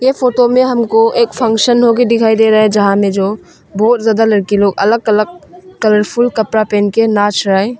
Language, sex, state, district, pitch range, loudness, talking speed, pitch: Hindi, female, Arunachal Pradesh, Longding, 205-235 Hz, -11 LUFS, 200 wpm, 220 Hz